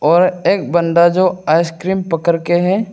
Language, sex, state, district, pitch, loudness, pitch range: Hindi, male, Arunachal Pradesh, Lower Dibang Valley, 175 Hz, -14 LUFS, 165-185 Hz